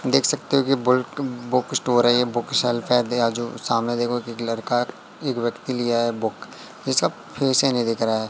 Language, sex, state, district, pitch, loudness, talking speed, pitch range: Hindi, male, Madhya Pradesh, Katni, 120 Hz, -22 LUFS, 210 wpm, 115-125 Hz